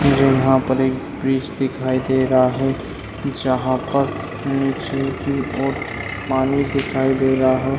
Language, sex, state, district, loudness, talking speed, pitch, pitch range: Hindi, male, Chhattisgarh, Raigarh, -20 LUFS, 145 wpm, 135 Hz, 130-135 Hz